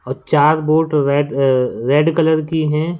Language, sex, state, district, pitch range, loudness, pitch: Hindi, male, Madhya Pradesh, Katni, 145-160 Hz, -15 LUFS, 155 Hz